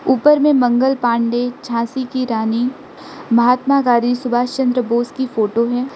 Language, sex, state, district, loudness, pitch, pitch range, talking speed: Hindi, female, Arunachal Pradesh, Lower Dibang Valley, -16 LUFS, 245 Hz, 235-260 Hz, 150 wpm